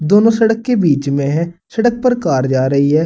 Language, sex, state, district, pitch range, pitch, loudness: Hindi, male, Uttar Pradesh, Saharanpur, 140-225 Hz, 170 Hz, -14 LUFS